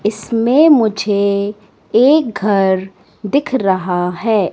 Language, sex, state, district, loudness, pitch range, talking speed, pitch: Hindi, female, Madhya Pradesh, Katni, -14 LUFS, 195-235 Hz, 95 wpm, 210 Hz